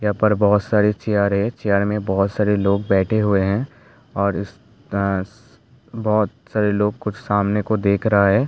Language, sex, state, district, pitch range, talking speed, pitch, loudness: Hindi, male, Uttar Pradesh, Hamirpur, 100-110 Hz, 175 wpm, 105 Hz, -19 LUFS